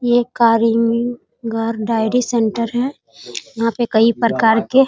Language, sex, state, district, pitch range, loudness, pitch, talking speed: Hindi, female, Bihar, Muzaffarpur, 225-240 Hz, -17 LUFS, 230 Hz, 160 wpm